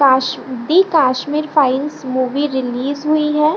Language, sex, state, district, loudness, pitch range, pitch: Hindi, female, Bihar, Lakhisarai, -16 LUFS, 260-305 Hz, 285 Hz